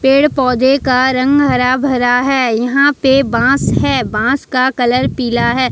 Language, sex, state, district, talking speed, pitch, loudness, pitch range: Hindi, female, Jharkhand, Ranchi, 170 wpm, 255 Hz, -13 LUFS, 250-270 Hz